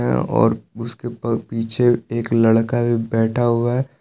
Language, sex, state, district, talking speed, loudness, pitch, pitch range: Hindi, male, Jharkhand, Palamu, 150 wpm, -19 LUFS, 115 Hz, 115-120 Hz